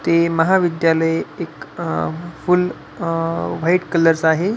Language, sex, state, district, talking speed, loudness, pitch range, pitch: Marathi, male, Maharashtra, Pune, 130 wpm, -18 LUFS, 165-175 Hz, 165 Hz